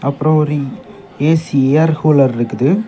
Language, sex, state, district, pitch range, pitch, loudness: Tamil, male, Tamil Nadu, Kanyakumari, 135-155 Hz, 150 Hz, -14 LUFS